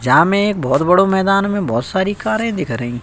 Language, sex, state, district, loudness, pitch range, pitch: Hindi, male, Uttar Pradesh, Budaun, -16 LUFS, 165-205 Hz, 195 Hz